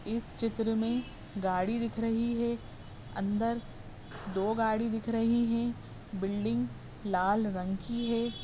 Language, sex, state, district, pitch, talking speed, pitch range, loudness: Hindi, female, Uttar Pradesh, Jyotiba Phule Nagar, 225 Hz, 130 wpm, 195-230 Hz, -32 LUFS